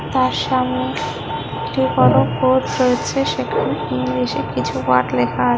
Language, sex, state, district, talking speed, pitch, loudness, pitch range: Bengali, female, West Bengal, Kolkata, 140 wpm, 130 Hz, -18 LUFS, 125-130 Hz